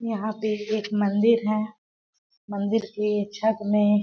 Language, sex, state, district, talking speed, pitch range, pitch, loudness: Hindi, female, Chhattisgarh, Balrampur, 150 wpm, 210-215 Hz, 215 Hz, -25 LUFS